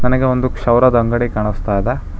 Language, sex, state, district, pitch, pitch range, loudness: Kannada, male, Karnataka, Bangalore, 120 Hz, 105-125 Hz, -16 LUFS